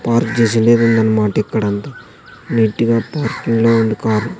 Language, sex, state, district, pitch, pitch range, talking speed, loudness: Telugu, male, Andhra Pradesh, Sri Satya Sai, 115 Hz, 110-115 Hz, 120 wpm, -15 LUFS